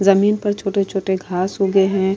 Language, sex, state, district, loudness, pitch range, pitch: Hindi, female, Uttar Pradesh, Jalaun, -18 LUFS, 190-200 Hz, 195 Hz